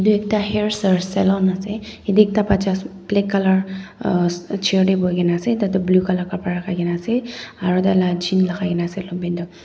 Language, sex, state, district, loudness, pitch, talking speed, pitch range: Nagamese, female, Nagaland, Dimapur, -19 LUFS, 190 Hz, 200 wpm, 180-200 Hz